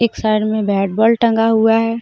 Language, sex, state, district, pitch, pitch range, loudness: Hindi, female, Jharkhand, Deoghar, 225 Hz, 215-230 Hz, -15 LUFS